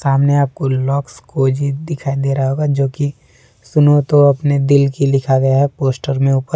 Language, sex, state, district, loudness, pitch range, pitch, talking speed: Hindi, male, Jharkhand, Deoghar, -15 LUFS, 135-145 Hz, 140 Hz, 190 wpm